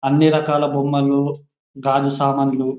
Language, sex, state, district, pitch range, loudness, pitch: Telugu, male, Andhra Pradesh, Anantapur, 135-145 Hz, -18 LUFS, 140 Hz